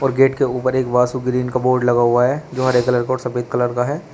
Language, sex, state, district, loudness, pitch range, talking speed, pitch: Hindi, male, Uttar Pradesh, Shamli, -18 LUFS, 125-130 Hz, 305 wpm, 125 Hz